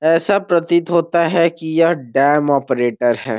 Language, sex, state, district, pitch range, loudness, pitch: Hindi, male, Bihar, Gopalganj, 135-170 Hz, -16 LUFS, 160 Hz